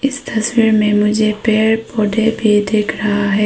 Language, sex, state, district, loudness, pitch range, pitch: Hindi, female, Arunachal Pradesh, Papum Pare, -15 LUFS, 210-225 Hz, 215 Hz